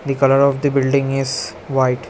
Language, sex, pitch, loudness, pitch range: English, male, 135 Hz, -17 LUFS, 130-140 Hz